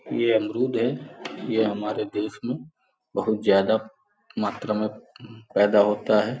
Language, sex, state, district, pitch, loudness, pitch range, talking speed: Hindi, male, Uttar Pradesh, Gorakhpur, 110 Hz, -24 LUFS, 105-115 Hz, 130 wpm